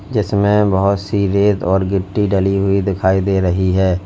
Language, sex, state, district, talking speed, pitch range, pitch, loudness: Hindi, male, Uttar Pradesh, Lalitpur, 175 wpm, 95-100 Hz, 100 Hz, -16 LUFS